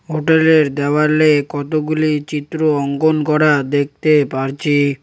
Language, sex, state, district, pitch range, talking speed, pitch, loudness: Bengali, male, West Bengal, Cooch Behar, 145-155 Hz, 95 wpm, 150 Hz, -15 LUFS